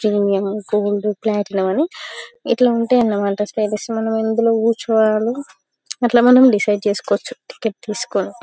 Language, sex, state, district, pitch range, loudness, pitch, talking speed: Telugu, female, Telangana, Karimnagar, 205-235 Hz, -17 LUFS, 220 Hz, 130 wpm